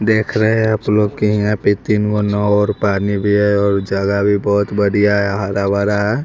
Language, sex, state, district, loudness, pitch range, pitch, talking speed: Hindi, male, Bihar, West Champaran, -15 LUFS, 100-105 Hz, 105 Hz, 220 wpm